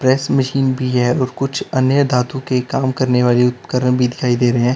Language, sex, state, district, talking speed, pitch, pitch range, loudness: Hindi, male, Uttar Pradesh, Lalitpur, 215 wpm, 130 Hz, 125-130 Hz, -16 LUFS